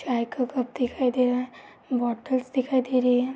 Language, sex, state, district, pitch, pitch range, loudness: Hindi, female, Uttar Pradesh, Gorakhpur, 250 Hz, 245-260 Hz, -26 LUFS